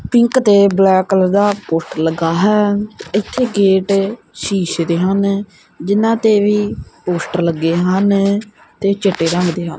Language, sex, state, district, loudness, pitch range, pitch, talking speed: Punjabi, male, Punjab, Kapurthala, -15 LUFS, 175-205 Hz, 195 Hz, 145 wpm